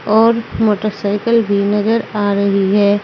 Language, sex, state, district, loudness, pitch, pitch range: Hindi, female, Uttar Pradesh, Saharanpur, -15 LUFS, 210 Hz, 200-220 Hz